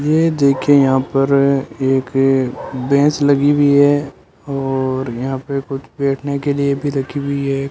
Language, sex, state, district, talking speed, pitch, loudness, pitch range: Hindi, male, Rajasthan, Bikaner, 155 wpm, 140 Hz, -16 LUFS, 135-145 Hz